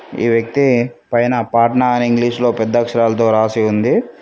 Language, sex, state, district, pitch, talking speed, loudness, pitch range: Telugu, male, Telangana, Mahabubabad, 120 Hz, 155 wpm, -15 LUFS, 115-120 Hz